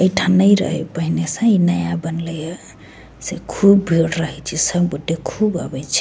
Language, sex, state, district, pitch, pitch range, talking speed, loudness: Maithili, female, Bihar, Begusarai, 165 Hz, 160-185 Hz, 190 wpm, -18 LUFS